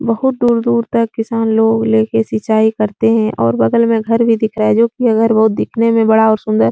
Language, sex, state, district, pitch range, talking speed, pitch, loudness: Hindi, female, Uttar Pradesh, Etah, 220-230 Hz, 240 wpm, 225 Hz, -13 LUFS